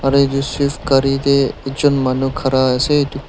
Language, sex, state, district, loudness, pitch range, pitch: Nagamese, male, Nagaland, Dimapur, -16 LUFS, 135-140 Hz, 135 Hz